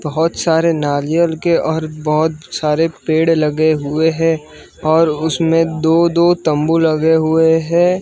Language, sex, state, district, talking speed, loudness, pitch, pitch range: Hindi, male, Gujarat, Gandhinagar, 140 wpm, -15 LUFS, 160 Hz, 155-165 Hz